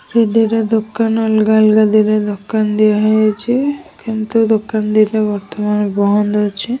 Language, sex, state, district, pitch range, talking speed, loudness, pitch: Odia, male, Odisha, Nuapada, 210-225 Hz, 130 wpm, -14 LUFS, 215 Hz